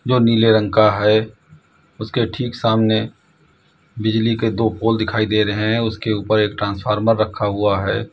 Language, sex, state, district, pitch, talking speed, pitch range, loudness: Hindi, male, Uttar Pradesh, Lalitpur, 110 Hz, 170 wpm, 105-115 Hz, -18 LUFS